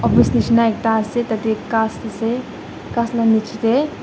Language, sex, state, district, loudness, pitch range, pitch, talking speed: Nagamese, female, Nagaland, Dimapur, -18 LUFS, 220-235 Hz, 225 Hz, 150 wpm